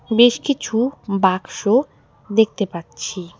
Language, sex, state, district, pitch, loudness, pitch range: Bengali, female, West Bengal, Alipurduar, 220 Hz, -19 LUFS, 190-240 Hz